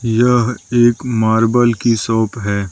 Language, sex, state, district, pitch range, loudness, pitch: Hindi, male, Arunachal Pradesh, Lower Dibang Valley, 110-120 Hz, -15 LUFS, 115 Hz